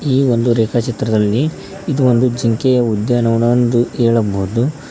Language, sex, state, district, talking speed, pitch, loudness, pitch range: Kannada, male, Karnataka, Koppal, 120 wpm, 120 Hz, -15 LUFS, 115-130 Hz